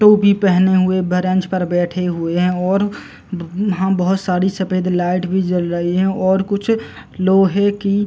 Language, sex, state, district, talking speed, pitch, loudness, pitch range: Hindi, male, Uttar Pradesh, Muzaffarnagar, 170 wpm, 185 Hz, -17 LUFS, 180-195 Hz